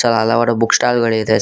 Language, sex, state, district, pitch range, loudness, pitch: Kannada, male, Karnataka, Koppal, 110-120 Hz, -15 LUFS, 115 Hz